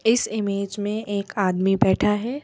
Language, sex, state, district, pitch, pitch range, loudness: Hindi, female, Madhya Pradesh, Bhopal, 205 Hz, 200-220 Hz, -22 LUFS